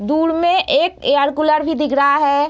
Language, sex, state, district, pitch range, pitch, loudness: Hindi, female, Bihar, Araria, 285-325 Hz, 305 Hz, -15 LUFS